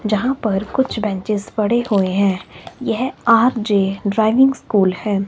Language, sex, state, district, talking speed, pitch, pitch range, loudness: Hindi, male, Himachal Pradesh, Shimla, 135 wpm, 215 Hz, 200-235 Hz, -18 LUFS